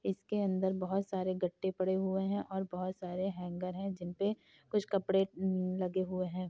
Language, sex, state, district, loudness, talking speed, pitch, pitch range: Hindi, female, Uttar Pradesh, Hamirpur, -36 LUFS, 185 wpm, 190 Hz, 185-195 Hz